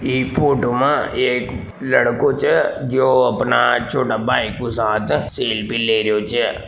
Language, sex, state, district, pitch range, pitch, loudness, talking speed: Marwari, male, Rajasthan, Nagaur, 115-130 Hz, 125 Hz, -18 LUFS, 145 wpm